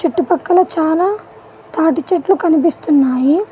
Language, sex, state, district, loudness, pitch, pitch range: Telugu, female, Telangana, Mahabubabad, -14 LUFS, 330 Hz, 315-360 Hz